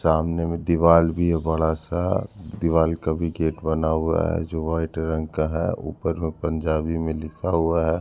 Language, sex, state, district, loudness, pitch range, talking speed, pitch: Hindi, male, Punjab, Kapurthala, -23 LUFS, 80-85 Hz, 195 wpm, 80 Hz